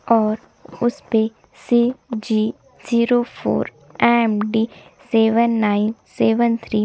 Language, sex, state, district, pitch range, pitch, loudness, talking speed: Hindi, female, Chhattisgarh, Sukma, 220-235 Hz, 225 Hz, -19 LUFS, 115 wpm